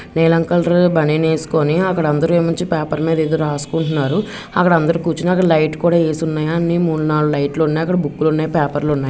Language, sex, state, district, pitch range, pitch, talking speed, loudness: Telugu, female, Andhra Pradesh, Visakhapatnam, 155-170 Hz, 160 Hz, 200 wpm, -16 LUFS